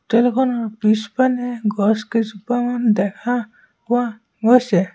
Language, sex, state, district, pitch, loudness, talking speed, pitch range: Assamese, male, Assam, Sonitpur, 230 Hz, -19 LUFS, 85 wpm, 215-245 Hz